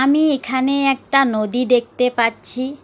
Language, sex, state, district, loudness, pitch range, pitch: Bengali, female, West Bengal, Alipurduar, -17 LUFS, 245-275 Hz, 260 Hz